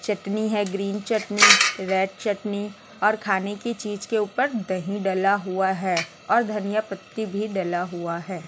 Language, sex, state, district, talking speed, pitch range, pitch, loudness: Hindi, female, Chhattisgarh, Raipur, 165 wpm, 190-210 Hz, 205 Hz, -23 LUFS